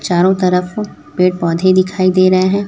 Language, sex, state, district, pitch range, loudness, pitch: Hindi, female, Chhattisgarh, Raipur, 180-185 Hz, -13 LUFS, 185 Hz